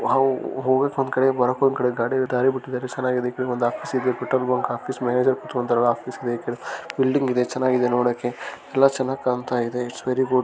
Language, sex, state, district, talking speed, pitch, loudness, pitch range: Kannada, male, Karnataka, Dharwad, 75 wpm, 125 Hz, -23 LUFS, 125-130 Hz